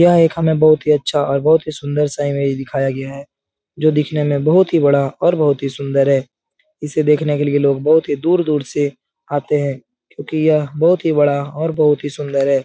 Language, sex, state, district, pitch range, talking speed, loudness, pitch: Hindi, male, Bihar, Jahanabad, 140-155 Hz, 225 wpm, -16 LUFS, 145 Hz